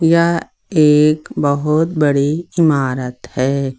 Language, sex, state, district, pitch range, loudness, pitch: Hindi, male, Uttar Pradesh, Lucknow, 135-160 Hz, -15 LUFS, 150 Hz